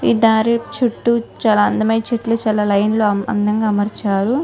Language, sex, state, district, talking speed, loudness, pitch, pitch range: Telugu, female, Telangana, Nalgonda, 150 wpm, -17 LUFS, 220 Hz, 210-230 Hz